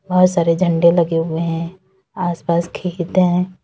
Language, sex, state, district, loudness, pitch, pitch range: Hindi, female, Uttar Pradesh, Lalitpur, -17 LUFS, 175 Hz, 170-185 Hz